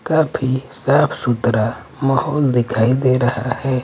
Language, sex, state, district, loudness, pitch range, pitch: Hindi, male, Maharashtra, Mumbai Suburban, -18 LUFS, 120-135 Hz, 130 Hz